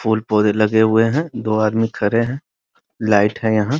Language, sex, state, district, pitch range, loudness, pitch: Hindi, male, Bihar, Muzaffarpur, 110-115 Hz, -17 LUFS, 110 Hz